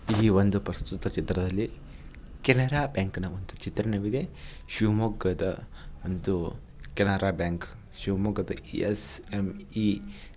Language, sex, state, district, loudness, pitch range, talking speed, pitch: Kannada, male, Karnataka, Shimoga, -29 LUFS, 85-105 Hz, 100 wpm, 95 Hz